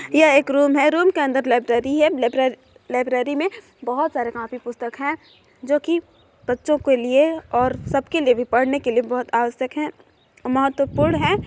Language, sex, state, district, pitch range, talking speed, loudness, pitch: Hindi, female, Chhattisgarh, Balrampur, 245-300 Hz, 165 wpm, -20 LUFS, 270 Hz